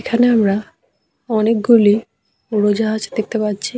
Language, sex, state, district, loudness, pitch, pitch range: Bengali, female, West Bengal, Malda, -16 LUFS, 220 Hz, 210-230 Hz